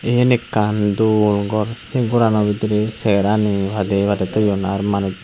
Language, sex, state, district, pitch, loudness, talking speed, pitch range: Chakma, male, Tripura, Unakoti, 105 Hz, -18 LUFS, 150 wpm, 100-110 Hz